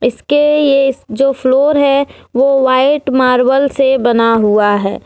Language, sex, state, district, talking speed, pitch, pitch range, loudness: Hindi, female, Jharkhand, Deoghar, 140 wpm, 265 Hz, 245-275 Hz, -12 LUFS